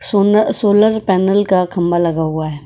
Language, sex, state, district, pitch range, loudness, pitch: Hindi, female, Goa, North and South Goa, 170-205 Hz, -14 LUFS, 190 Hz